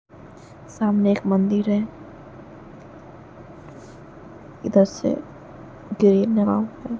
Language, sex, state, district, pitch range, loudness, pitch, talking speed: Hindi, male, Uttar Pradesh, Jalaun, 200-215 Hz, -21 LUFS, 205 Hz, 60 wpm